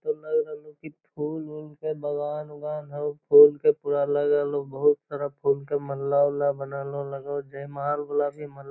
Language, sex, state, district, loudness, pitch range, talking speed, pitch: Magahi, male, Bihar, Lakhisarai, -25 LUFS, 140-150 Hz, 195 wpm, 145 Hz